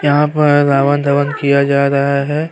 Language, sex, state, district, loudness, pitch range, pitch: Hindi, male, Uttar Pradesh, Hamirpur, -13 LUFS, 140-145 Hz, 145 Hz